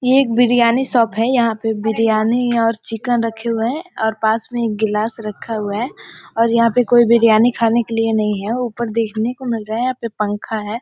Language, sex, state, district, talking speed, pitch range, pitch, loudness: Hindi, female, Bihar, Gopalganj, 235 wpm, 220-240 Hz, 230 Hz, -17 LUFS